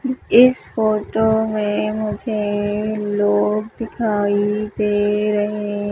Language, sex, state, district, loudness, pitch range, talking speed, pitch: Hindi, female, Madhya Pradesh, Umaria, -19 LUFS, 205-220 Hz, 80 wpm, 210 Hz